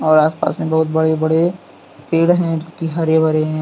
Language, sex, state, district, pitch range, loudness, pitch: Hindi, male, Jharkhand, Deoghar, 155-165 Hz, -16 LUFS, 160 Hz